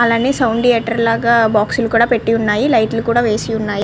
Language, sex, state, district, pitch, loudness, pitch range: Telugu, female, Andhra Pradesh, Srikakulam, 230 Hz, -14 LUFS, 225-235 Hz